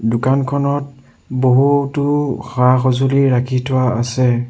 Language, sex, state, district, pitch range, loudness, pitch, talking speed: Assamese, male, Assam, Sonitpur, 125-140 Hz, -16 LUFS, 130 Hz, 80 wpm